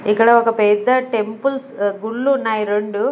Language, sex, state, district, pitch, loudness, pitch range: Telugu, female, Andhra Pradesh, Sri Satya Sai, 220 Hz, -17 LUFS, 210-250 Hz